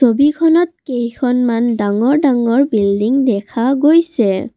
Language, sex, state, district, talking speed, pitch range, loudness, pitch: Assamese, female, Assam, Kamrup Metropolitan, 90 wpm, 230-285 Hz, -14 LUFS, 250 Hz